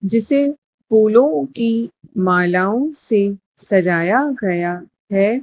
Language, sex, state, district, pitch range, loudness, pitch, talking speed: Hindi, male, Madhya Pradesh, Dhar, 180-230 Hz, -16 LUFS, 205 Hz, 90 wpm